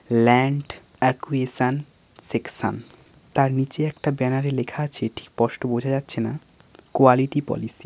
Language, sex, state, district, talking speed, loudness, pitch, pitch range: Bengali, male, West Bengal, Paschim Medinipur, 145 wpm, -23 LUFS, 130 Hz, 125-145 Hz